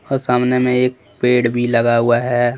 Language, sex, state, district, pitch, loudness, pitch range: Hindi, male, Jharkhand, Deoghar, 120 Hz, -16 LUFS, 120-125 Hz